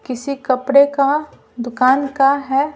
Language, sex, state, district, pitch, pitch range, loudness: Hindi, female, Bihar, Patna, 275 Hz, 255-280 Hz, -16 LUFS